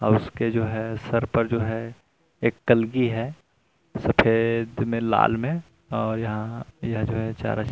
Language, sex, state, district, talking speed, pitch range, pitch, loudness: Hindi, male, Chhattisgarh, Rajnandgaon, 155 wpm, 110-115 Hz, 115 Hz, -24 LUFS